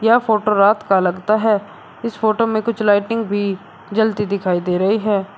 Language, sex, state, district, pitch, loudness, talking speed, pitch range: Hindi, male, Uttar Pradesh, Shamli, 210 Hz, -17 LUFS, 190 wpm, 200-220 Hz